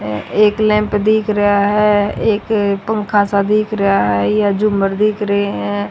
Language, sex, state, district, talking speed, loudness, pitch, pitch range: Hindi, female, Haryana, Rohtak, 160 wpm, -15 LUFS, 205 Hz, 200-210 Hz